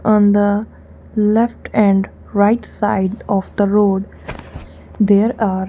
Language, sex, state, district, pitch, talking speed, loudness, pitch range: English, female, Punjab, Kapurthala, 205 Hz, 115 wpm, -16 LUFS, 200-215 Hz